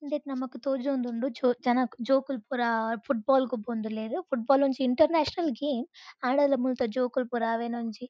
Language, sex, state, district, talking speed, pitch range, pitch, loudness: Tulu, female, Karnataka, Dakshina Kannada, 165 wpm, 240-275 Hz, 260 Hz, -28 LUFS